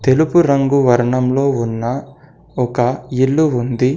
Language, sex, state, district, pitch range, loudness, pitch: Telugu, male, Telangana, Komaram Bheem, 125-140 Hz, -15 LUFS, 130 Hz